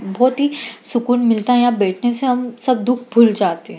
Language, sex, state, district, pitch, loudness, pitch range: Hindi, female, Bihar, Gaya, 245 Hz, -16 LUFS, 230-250 Hz